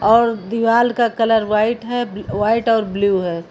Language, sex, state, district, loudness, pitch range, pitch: Hindi, female, Uttar Pradesh, Lucknow, -17 LUFS, 205-230 Hz, 225 Hz